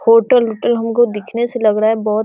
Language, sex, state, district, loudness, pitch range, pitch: Hindi, female, Bihar, Sitamarhi, -15 LUFS, 215-240 Hz, 230 Hz